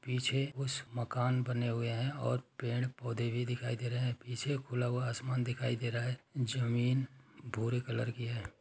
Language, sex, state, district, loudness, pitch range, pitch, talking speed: Hindi, male, Uttar Pradesh, Etah, -36 LUFS, 120-130 Hz, 125 Hz, 190 wpm